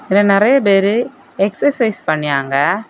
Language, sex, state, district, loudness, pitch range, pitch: Tamil, female, Tamil Nadu, Kanyakumari, -14 LUFS, 155-230 Hz, 200 Hz